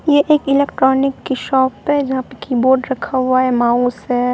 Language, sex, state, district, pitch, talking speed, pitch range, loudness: Hindi, female, Bihar, Katihar, 260 Hz, 195 wpm, 250-275 Hz, -16 LUFS